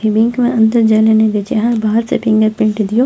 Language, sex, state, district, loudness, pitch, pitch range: Maithili, female, Bihar, Purnia, -13 LUFS, 220 Hz, 215-235 Hz